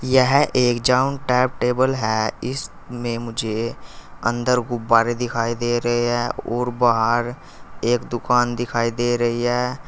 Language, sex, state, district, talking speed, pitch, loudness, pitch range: Hindi, male, Uttar Pradesh, Saharanpur, 125 wpm, 120 Hz, -21 LUFS, 115-125 Hz